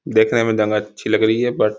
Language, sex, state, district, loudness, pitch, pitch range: Hindi, male, Uttar Pradesh, Gorakhpur, -18 LUFS, 110 Hz, 105-115 Hz